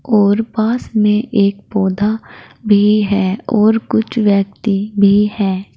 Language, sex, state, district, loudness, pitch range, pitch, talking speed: Hindi, female, Uttar Pradesh, Saharanpur, -14 LUFS, 200-220 Hz, 210 Hz, 125 wpm